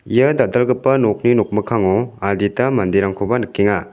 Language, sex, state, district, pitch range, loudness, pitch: Garo, male, Meghalaya, South Garo Hills, 100-125 Hz, -17 LUFS, 105 Hz